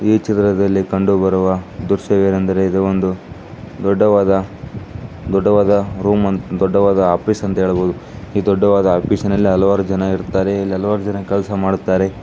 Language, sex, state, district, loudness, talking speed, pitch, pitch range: Kannada, male, Karnataka, Dakshina Kannada, -16 LUFS, 65 wpm, 100 Hz, 95-100 Hz